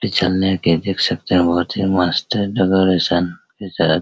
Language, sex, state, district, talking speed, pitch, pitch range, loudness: Hindi, male, Bihar, Araria, 150 wpm, 90 Hz, 90-95 Hz, -17 LUFS